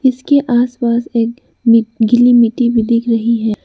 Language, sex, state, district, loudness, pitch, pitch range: Hindi, female, Arunachal Pradesh, Lower Dibang Valley, -13 LUFS, 235 Hz, 230-245 Hz